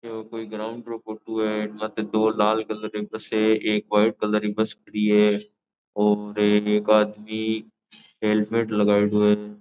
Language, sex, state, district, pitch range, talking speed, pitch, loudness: Marwari, male, Rajasthan, Nagaur, 105-110 Hz, 160 wpm, 105 Hz, -23 LUFS